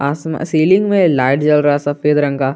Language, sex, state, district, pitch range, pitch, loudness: Hindi, male, Jharkhand, Garhwa, 140-160 Hz, 150 Hz, -14 LUFS